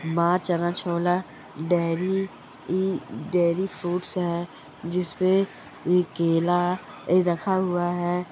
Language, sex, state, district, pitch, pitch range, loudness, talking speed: Hindi, male, Bihar, Darbhanga, 175 Hz, 170-185 Hz, -25 LUFS, 100 wpm